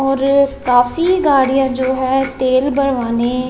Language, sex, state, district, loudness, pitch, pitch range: Hindi, female, Punjab, Kapurthala, -15 LUFS, 265 Hz, 255-275 Hz